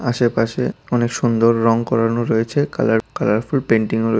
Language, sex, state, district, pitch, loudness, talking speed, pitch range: Bengali, male, Tripura, West Tripura, 115 Hz, -18 LUFS, 145 wpm, 115-120 Hz